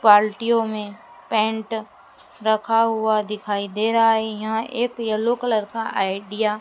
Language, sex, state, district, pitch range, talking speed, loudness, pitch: Hindi, female, Madhya Pradesh, Dhar, 210-225 Hz, 145 wpm, -22 LUFS, 220 Hz